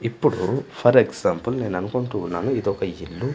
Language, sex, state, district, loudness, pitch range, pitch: Telugu, male, Andhra Pradesh, Manyam, -22 LUFS, 90-130 Hz, 115 Hz